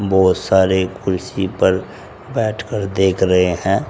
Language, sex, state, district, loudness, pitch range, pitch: Hindi, male, Uttar Pradesh, Saharanpur, -17 LUFS, 95-100 Hz, 95 Hz